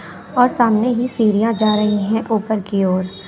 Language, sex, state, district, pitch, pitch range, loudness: Hindi, female, Bihar, West Champaran, 215 Hz, 200-230 Hz, -17 LUFS